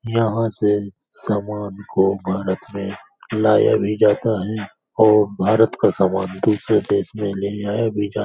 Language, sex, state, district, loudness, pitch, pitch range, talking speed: Hindi, male, Uttar Pradesh, Hamirpur, -19 LUFS, 105 Hz, 100-110 Hz, 160 wpm